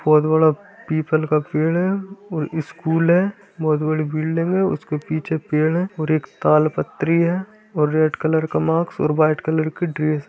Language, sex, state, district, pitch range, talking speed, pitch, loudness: Hindi, male, Bihar, Madhepura, 155-170 Hz, 185 wpm, 160 Hz, -20 LUFS